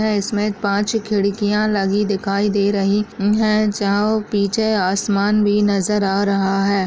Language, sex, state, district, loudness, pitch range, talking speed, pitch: Hindi, female, Rajasthan, Nagaur, -18 LUFS, 200-210 Hz, 155 wpm, 205 Hz